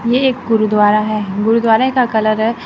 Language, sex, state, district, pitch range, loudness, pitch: Hindi, female, Chandigarh, Chandigarh, 215-235 Hz, -14 LUFS, 220 Hz